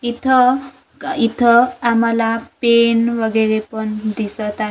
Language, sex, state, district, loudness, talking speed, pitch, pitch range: Marathi, female, Maharashtra, Gondia, -16 LUFS, 115 wpm, 230 Hz, 220-240 Hz